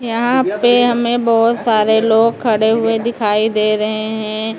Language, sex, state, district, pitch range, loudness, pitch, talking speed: Hindi, female, Maharashtra, Mumbai Suburban, 215-235 Hz, -14 LUFS, 225 Hz, 155 wpm